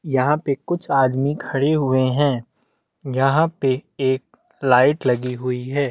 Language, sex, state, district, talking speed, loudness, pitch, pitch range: Hindi, male, Chhattisgarh, Bastar, 140 wpm, -20 LUFS, 135 Hz, 130-145 Hz